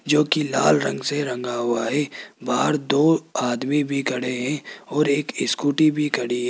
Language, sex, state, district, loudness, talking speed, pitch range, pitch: Hindi, male, Rajasthan, Jaipur, -22 LUFS, 185 wpm, 125-150 Hz, 140 Hz